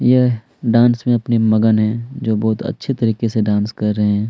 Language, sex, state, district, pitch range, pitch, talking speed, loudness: Hindi, male, Chhattisgarh, Kabirdham, 110-120 Hz, 110 Hz, 210 wpm, -17 LUFS